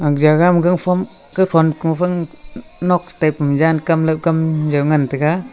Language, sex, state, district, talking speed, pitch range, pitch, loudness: Wancho, male, Arunachal Pradesh, Longding, 165 wpm, 155-180 Hz, 160 Hz, -16 LUFS